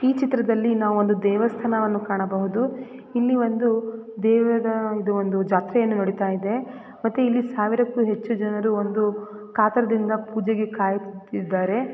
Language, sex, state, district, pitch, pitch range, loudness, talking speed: Kannada, female, Karnataka, Raichur, 220 Hz, 210-235 Hz, -23 LUFS, 110 wpm